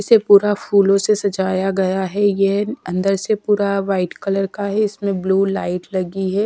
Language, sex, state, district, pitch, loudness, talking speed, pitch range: Hindi, female, Punjab, Kapurthala, 195 Hz, -18 LUFS, 185 wpm, 190-205 Hz